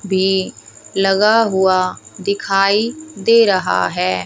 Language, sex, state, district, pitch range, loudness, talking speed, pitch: Hindi, male, Haryana, Charkhi Dadri, 190-215 Hz, -16 LUFS, 100 wpm, 195 Hz